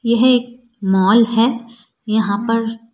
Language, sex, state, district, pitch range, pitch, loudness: Hindi, female, Rajasthan, Jaipur, 220-235 Hz, 230 Hz, -16 LUFS